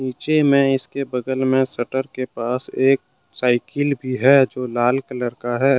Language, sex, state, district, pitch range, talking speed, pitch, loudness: Hindi, male, Jharkhand, Deoghar, 125-135 Hz, 165 wpm, 130 Hz, -20 LUFS